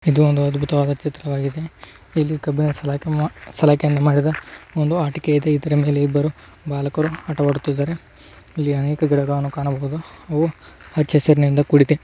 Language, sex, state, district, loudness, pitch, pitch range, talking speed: Kannada, male, Karnataka, Raichur, -20 LUFS, 145 Hz, 145-155 Hz, 110 wpm